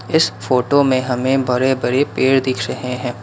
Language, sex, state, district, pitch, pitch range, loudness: Hindi, male, Assam, Kamrup Metropolitan, 130 Hz, 125-135 Hz, -17 LUFS